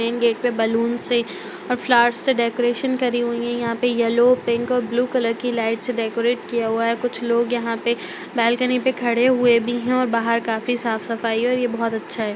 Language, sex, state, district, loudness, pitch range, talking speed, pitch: Hindi, female, Bihar, Darbhanga, -20 LUFS, 230-245 Hz, 225 wpm, 235 Hz